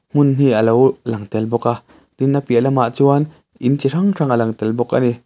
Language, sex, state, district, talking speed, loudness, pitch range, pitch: Mizo, male, Mizoram, Aizawl, 240 wpm, -17 LUFS, 115-140 Hz, 130 Hz